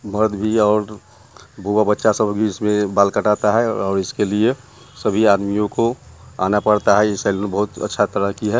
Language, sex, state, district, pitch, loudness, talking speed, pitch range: Hindi, male, Bihar, Muzaffarpur, 105 Hz, -18 LUFS, 175 wpm, 100-110 Hz